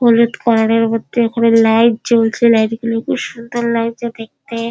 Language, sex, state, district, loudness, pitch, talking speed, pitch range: Bengali, female, West Bengal, Dakshin Dinajpur, -14 LUFS, 230 Hz, 165 wpm, 225-235 Hz